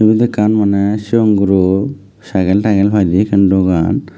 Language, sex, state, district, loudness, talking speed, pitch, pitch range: Chakma, male, Tripura, West Tripura, -13 LUFS, 145 wpm, 100 Hz, 95-105 Hz